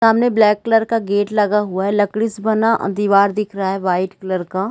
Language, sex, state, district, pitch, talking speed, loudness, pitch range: Hindi, female, Chhattisgarh, Bilaspur, 205 Hz, 230 wpm, -17 LUFS, 195-220 Hz